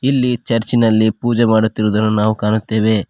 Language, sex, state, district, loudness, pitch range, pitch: Kannada, male, Karnataka, Koppal, -15 LUFS, 110-115 Hz, 110 Hz